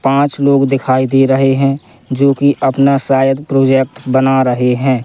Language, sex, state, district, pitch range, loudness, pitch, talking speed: Hindi, male, Madhya Pradesh, Katni, 130-140 Hz, -12 LUFS, 135 Hz, 155 wpm